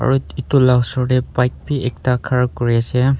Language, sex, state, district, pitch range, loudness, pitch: Nagamese, male, Nagaland, Kohima, 125-135 Hz, -17 LUFS, 125 Hz